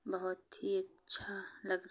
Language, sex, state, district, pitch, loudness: Hindi, female, Chhattisgarh, Bastar, 185 Hz, -38 LUFS